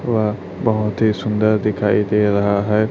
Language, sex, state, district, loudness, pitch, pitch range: Hindi, male, Chhattisgarh, Raipur, -18 LUFS, 105 Hz, 105-110 Hz